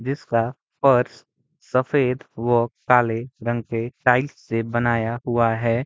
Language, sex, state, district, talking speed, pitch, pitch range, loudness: Hindi, male, Bihar, Sitamarhi, 125 wpm, 120 Hz, 115-125 Hz, -22 LUFS